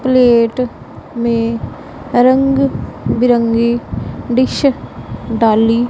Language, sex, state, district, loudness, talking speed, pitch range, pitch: Hindi, female, Punjab, Pathankot, -14 LUFS, 60 wpm, 230-255 Hz, 240 Hz